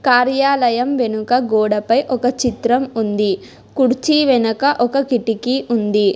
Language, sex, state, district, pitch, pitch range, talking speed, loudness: Telugu, female, Telangana, Hyderabad, 245 Hz, 220-260 Hz, 105 wpm, -16 LUFS